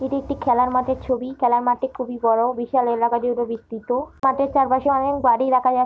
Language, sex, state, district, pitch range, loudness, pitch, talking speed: Bengali, female, West Bengal, Dakshin Dinajpur, 240-265 Hz, -21 LUFS, 255 Hz, 205 wpm